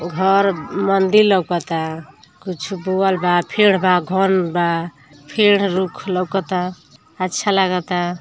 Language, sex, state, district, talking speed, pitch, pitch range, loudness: Hindi, female, Uttar Pradesh, Ghazipur, 110 wpm, 185 Hz, 175-195 Hz, -18 LUFS